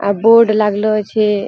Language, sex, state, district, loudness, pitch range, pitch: Angika, female, Bihar, Purnia, -13 LUFS, 205-215 Hz, 215 Hz